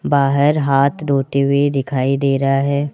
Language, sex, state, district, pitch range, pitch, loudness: Hindi, male, Rajasthan, Jaipur, 135-140 Hz, 140 Hz, -16 LUFS